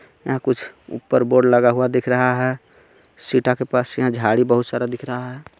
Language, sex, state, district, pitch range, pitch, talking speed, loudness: Hindi, male, Jharkhand, Garhwa, 120-125 Hz, 125 Hz, 205 wpm, -19 LUFS